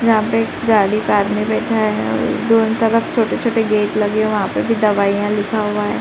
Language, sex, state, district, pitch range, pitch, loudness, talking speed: Hindi, female, Uttar Pradesh, Muzaffarnagar, 210-225 Hz, 215 Hz, -16 LUFS, 200 wpm